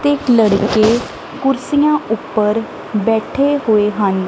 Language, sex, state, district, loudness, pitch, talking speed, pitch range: Punjabi, female, Punjab, Kapurthala, -15 LUFS, 225 Hz, 100 wpm, 210-280 Hz